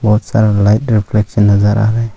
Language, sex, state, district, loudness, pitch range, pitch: Hindi, male, Arunachal Pradesh, Longding, -12 LUFS, 105-110 Hz, 105 Hz